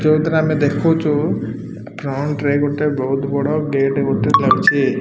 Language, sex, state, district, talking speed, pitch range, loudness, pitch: Odia, male, Odisha, Malkangiri, 130 wpm, 140-155 Hz, -17 LUFS, 145 Hz